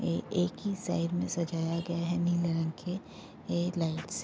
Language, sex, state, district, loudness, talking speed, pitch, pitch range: Hindi, female, Bihar, Begusarai, -32 LUFS, 200 wpm, 170 Hz, 125-175 Hz